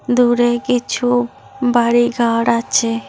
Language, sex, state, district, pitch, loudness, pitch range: Bengali, female, West Bengal, Cooch Behar, 240 Hz, -16 LUFS, 235-245 Hz